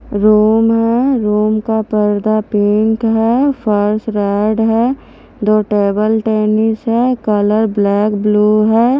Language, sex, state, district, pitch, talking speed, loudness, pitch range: Hindi, female, Himachal Pradesh, Shimla, 215 Hz, 120 wpm, -13 LUFS, 210-225 Hz